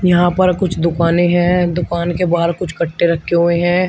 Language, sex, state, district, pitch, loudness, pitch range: Hindi, male, Uttar Pradesh, Shamli, 175 Hz, -15 LUFS, 170-180 Hz